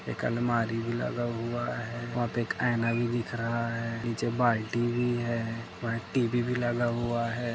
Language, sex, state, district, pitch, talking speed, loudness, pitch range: Hindi, male, Maharashtra, Dhule, 120 Hz, 180 wpm, -30 LUFS, 115-120 Hz